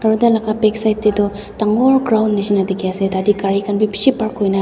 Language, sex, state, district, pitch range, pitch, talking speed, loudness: Nagamese, female, Nagaland, Dimapur, 200-220 Hz, 210 Hz, 235 wpm, -16 LUFS